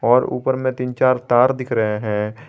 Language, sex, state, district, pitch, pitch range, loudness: Hindi, male, Jharkhand, Garhwa, 125 Hz, 110-130 Hz, -19 LUFS